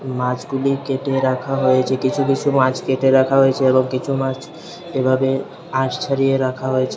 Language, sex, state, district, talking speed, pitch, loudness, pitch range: Bengali, male, Tripura, Unakoti, 155 wpm, 135 Hz, -18 LUFS, 130-135 Hz